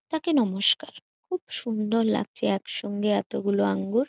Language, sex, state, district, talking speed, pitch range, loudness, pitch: Bengali, female, West Bengal, Jhargram, 115 wpm, 195-275 Hz, -26 LUFS, 215 Hz